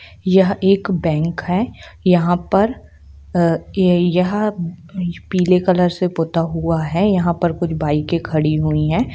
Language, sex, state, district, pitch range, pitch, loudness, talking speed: Hindi, female, Jharkhand, Jamtara, 160-185 Hz, 175 Hz, -18 LUFS, 130 wpm